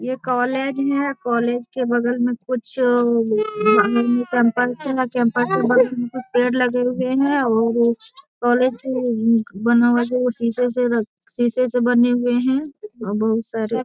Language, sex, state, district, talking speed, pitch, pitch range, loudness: Hindi, female, Bihar, Jamui, 135 wpm, 245 Hz, 235-255 Hz, -19 LUFS